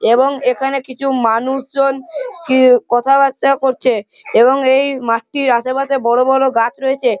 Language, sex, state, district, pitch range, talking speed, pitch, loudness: Bengali, male, West Bengal, Malda, 245-275 Hz, 125 wpm, 265 Hz, -14 LUFS